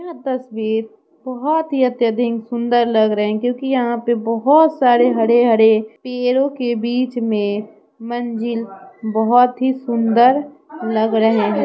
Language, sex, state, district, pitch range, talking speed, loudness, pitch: Hindi, female, Bihar, Muzaffarpur, 225-255 Hz, 135 wpm, -17 LUFS, 235 Hz